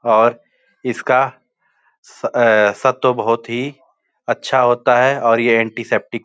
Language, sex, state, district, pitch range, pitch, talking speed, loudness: Hindi, male, Uttar Pradesh, Gorakhpur, 115-130 Hz, 125 Hz, 125 wpm, -16 LUFS